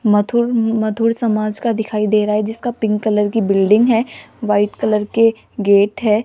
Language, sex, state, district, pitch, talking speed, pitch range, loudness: Hindi, female, Rajasthan, Jaipur, 215 Hz, 170 wpm, 210-230 Hz, -16 LUFS